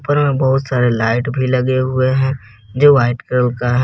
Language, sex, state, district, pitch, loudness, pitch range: Hindi, male, Jharkhand, Garhwa, 130 Hz, -15 LUFS, 120-135 Hz